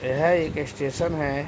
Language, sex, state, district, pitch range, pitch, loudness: Hindi, male, Uttar Pradesh, Deoria, 140-165 Hz, 145 Hz, -25 LUFS